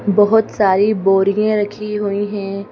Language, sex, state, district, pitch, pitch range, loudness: Hindi, female, Madhya Pradesh, Bhopal, 205 Hz, 200-210 Hz, -16 LUFS